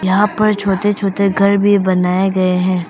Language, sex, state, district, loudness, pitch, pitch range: Hindi, female, Arunachal Pradesh, Papum Pare, -14 LUFS, 195 Hz, 185-200 Hz